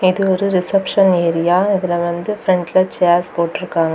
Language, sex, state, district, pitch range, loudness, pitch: Tamil, female, Tamil Nadu, Kanyakumari, 175-190 Hz, -16 LUFS, 185 Hz